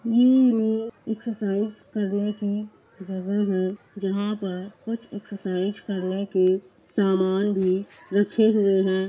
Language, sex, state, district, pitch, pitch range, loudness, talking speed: Hindi, female, Bihar, Kishanganj, 200 Hz, 190-215 Hz, -24 LUFS, 105 wpm